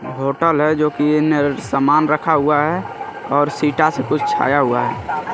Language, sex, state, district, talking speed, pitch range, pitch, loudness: Hindi, male, Jharkhand, Garhwa, 170 wpm, 145-155 Hz, 150 Hz, -17 LUFS